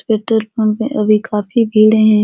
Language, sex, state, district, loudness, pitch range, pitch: Hindi, female, Bihar, Supaul, -14 LUFS, 215-225 Hz, 215 Hz